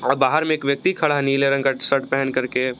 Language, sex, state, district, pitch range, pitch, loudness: Hindi, male, Jharkhand, Garhwa, 130-140 Hz, 135 Hz, -20 LUFS